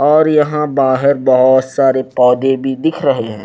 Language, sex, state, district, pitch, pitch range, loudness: Hindi, male, Haryana, Rohtak, 135 Hz, 130-145 Hz, -13 LUFS